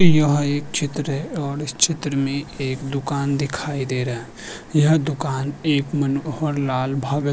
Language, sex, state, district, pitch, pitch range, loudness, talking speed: Hindi, male, Uttarakhand, Tehri Garhwal, 145 Hz, 135-150 Hz, -22 LUFS, 170 wpm